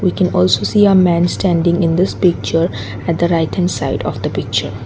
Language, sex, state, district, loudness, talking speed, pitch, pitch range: English, female, Assam, Kamrup Metropolitan, -15 LUFS, 220 wpm, 170 Hz, 165-180 Hz